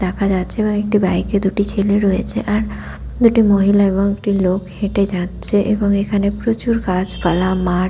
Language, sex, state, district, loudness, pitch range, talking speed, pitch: Bengali, female, West Bengal, Paschim Medinipur, -17 LUFS, 190-210 Hz, 165 wpm, 200 Hz